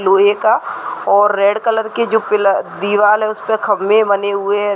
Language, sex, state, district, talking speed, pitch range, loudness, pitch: Hindi, female, Chhattisgarh, Bilaspur, 200 wpm, 200-215 Hz, -14 LUFS, 205 Hz